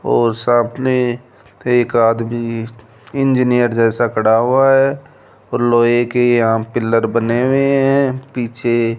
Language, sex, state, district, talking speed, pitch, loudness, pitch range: Hindi, male, Rajasthan, Jaipur, 125 wpm, 120 Hz, -15 LUFS, 115-130 Hz